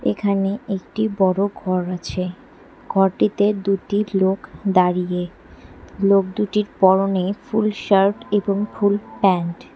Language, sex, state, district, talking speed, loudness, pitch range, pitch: Bengali, female, West Bengal, Cooch Behar, 110 wpm, -20 LUFS, 185-205 Hz, 195 Hz